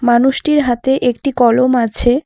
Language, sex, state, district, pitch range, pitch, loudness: Bengali, female, West Bengal, Alipurduar, 240-270 Hz, 250 Hz, -13 LUFS